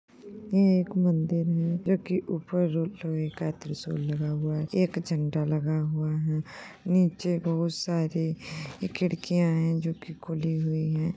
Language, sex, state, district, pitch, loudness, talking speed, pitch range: Hindi, female, Uttar Pradesh, Gorakhpur, 165 Hz, -28 LUFS, 135 wpm, 155-180 Hz